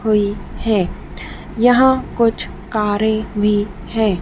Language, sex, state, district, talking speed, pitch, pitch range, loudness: Hindi, female, Madhya Pradesh, Dhar, 100 wpm, 215 Hz, 205-225 Hz, -17 LUFS